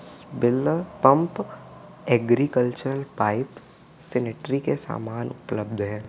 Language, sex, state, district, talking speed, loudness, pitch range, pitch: Hindi, male, Madhya Pradesh, Umaria, 90 wpm, -24 LUFS, 115-135 Hz, 125 Hz